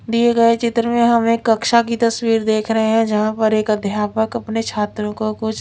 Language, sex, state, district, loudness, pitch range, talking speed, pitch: Hindi, female, Bihar, Patna, -17 LUFS, 215-230 Hz, 215 wpm, 225 Hz